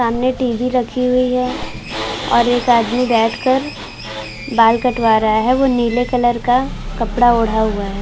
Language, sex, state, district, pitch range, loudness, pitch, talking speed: Hindi, female, Uttar Pradesh, Varanasi, 230-250 Hz, -16 LUFS, 245 Hz, 165 wpm